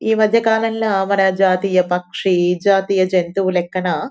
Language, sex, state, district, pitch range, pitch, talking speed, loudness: Telugu, female, Telangana, Nalgonda, 180-200 Hz, 190 Hz, 130 wpm, -16 LUFS